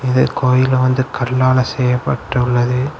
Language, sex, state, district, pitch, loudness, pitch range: Tamil, male, Tamil Nadu, Kanyakumari, 130 Hz, -16 LUFS, 125-130 Hz